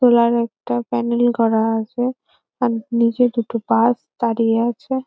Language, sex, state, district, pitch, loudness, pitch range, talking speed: Bengali, female, West Bengal, Jhargram, 235 Hz, -19 LUFS, 225-245 Hz, 140 wpm